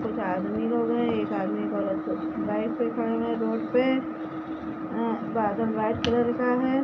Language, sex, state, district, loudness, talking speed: Hindi, female, Uttar Pradesh, Budaun, -27 LUFS, 175 wpm